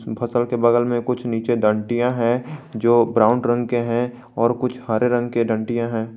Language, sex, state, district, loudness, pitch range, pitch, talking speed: Hindi, male, Jharkhand, Garhwa, -20 LUFS, 115-120 Hz, 120 Hz, 195 wpm